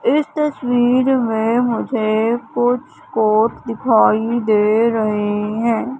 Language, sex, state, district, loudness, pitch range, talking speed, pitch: Hindi, female, Madhya Pradesh, Katni, -17 LUFS, 220-245 Hz, 100 wpm, 230 Hz